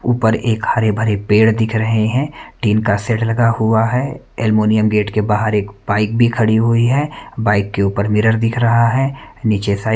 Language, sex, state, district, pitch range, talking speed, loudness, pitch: Hindi, male, Haryana, Rohtak, 105-115 Hz, 205 wpm, -16 LUFS, 110 Hz